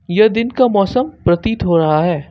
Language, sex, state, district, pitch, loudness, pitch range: Hindi, male, Jharkhand, Ranchi, 200 Hz, -15 LUFS, 175-235 Hz